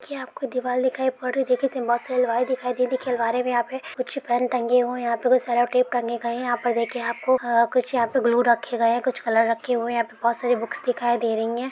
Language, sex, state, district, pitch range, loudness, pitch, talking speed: Hindi, female, Jharkhand, Jamtara, 235-255 Hz, -23 LUFS, 245 Hz, 255 wpm